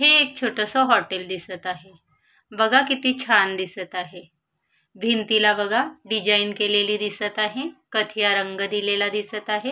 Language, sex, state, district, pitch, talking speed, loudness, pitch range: Marathi, female, Maharashtra, Solapur, 210 Hz, 135 wpm, -21 LUFS, 195-230 Hz